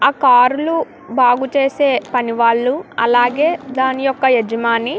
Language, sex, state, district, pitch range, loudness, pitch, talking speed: Telugu, female, Andhra Pradesh, Krishna, 245-275 Hz, -15 LUFS, 260 Hz, 145 wpm